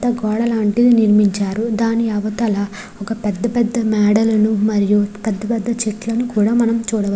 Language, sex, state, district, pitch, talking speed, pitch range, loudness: Telugu, female, Andhra Pradesh, Srikakulam, 215 Hz, 140 wpm, 210-230 Hz, -17 LUFS